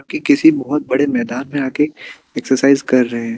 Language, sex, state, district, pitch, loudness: Hindi, male, Bihar, Kaimur, 140 Hz, -16 LUFS